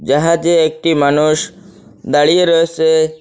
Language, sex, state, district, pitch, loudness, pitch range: Bengali, male, Assam, Hailakandi, 160 Hz, -13 LUFS, 155-170 Hz